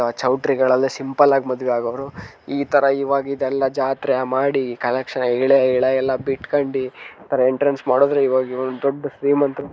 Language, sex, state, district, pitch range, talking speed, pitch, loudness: Kannada, male, Karnataka, Dharwad, 130-140 Hz, 140 wpm, 135 Hz, -19 LUFS